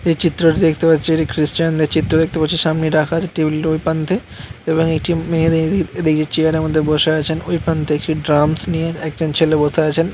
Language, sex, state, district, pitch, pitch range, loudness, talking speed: Bengali, male, West Bengal, Purulia, 160 Hz, 155-165 Hz, -16 LUFS, 200 wpm